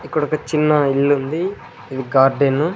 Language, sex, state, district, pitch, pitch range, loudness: Telugu, male, Andhra Pradesh, Sri Satya Sai, 145 Hz, 135-155 Hz, -17 LUFS